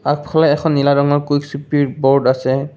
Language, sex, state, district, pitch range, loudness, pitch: Assamese, male, Assam, Kamrup Metropolitan, 140-145 Hz, -15 LUFS, 145 Hz